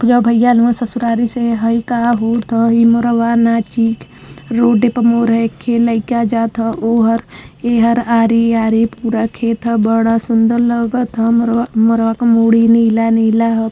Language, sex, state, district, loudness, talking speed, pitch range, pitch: Bhojpuri, female, Uttar Pradesh, Varanasi, -13 LUFS, 170 wpm, 230-235 Hz, 230 Hz